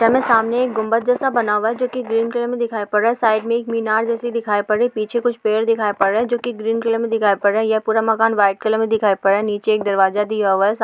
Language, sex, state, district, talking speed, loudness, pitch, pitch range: Hindi, female, Bihar, Vaishali, 305 wpm, -18 LUFS, 225 Hz, 210-235 Hz